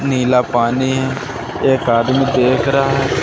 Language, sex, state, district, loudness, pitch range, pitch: Hindi, male, Madhya Pradesh, Umaria, -15 LUFS, 125-135 Hz, 130 Hz